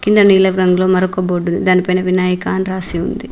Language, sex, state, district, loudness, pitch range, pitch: Telugu, female, Telangana, Mahabubabad, -14 LUFS, 180-190 Hz, 185 Hz